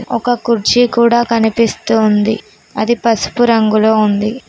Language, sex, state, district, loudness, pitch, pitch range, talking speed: Telugu, female, Telangana, Mahabubabad, -13 LUFS, 230 Hz, 215-235 Hz, 105 wpm